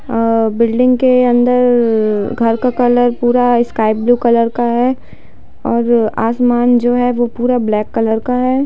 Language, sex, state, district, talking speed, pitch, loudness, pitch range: Hindi, female, Bihar, Darbhanga, 160 wpm, 240 Hz, -13 LUFS, 230-245 Hz